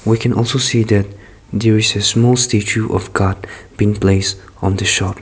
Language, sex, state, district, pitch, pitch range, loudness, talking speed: English, male, Nagaland, Kohima, 105 Hz, 95-115 Hz, -15 LUFS, 195 wpm